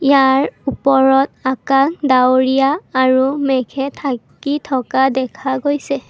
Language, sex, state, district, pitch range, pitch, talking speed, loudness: Assamese, female, Assam, Kamrup Metropolitan, 260-280 Hz, 270 Hz, 100 wpm, -16 LUFS